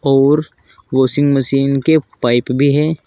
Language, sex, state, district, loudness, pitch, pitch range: Hindi, male, Uttar Pradesh, Saharanpur, -14 LUFS, 140 Hz, 135-150 Hz